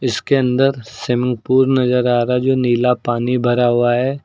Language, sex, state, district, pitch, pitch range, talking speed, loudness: Hindi, male, Uttar Pradesh, Lucknow, 125 Hz, 120-130 Hz, 185 wpm, -16 LUFS